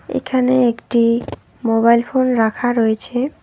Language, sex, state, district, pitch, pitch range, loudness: Bengali, female, West Bengal, Alipurduar, 240 Hz, 230-255 Hz, -17 LUFS